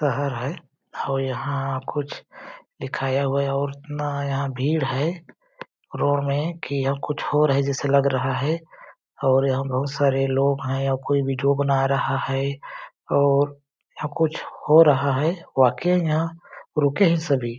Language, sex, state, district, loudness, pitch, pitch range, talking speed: Hindi, male, Chhattisgarh, Balrampur, -23 LUFS, 140 Hz, 135-150 Hz, 165 wpm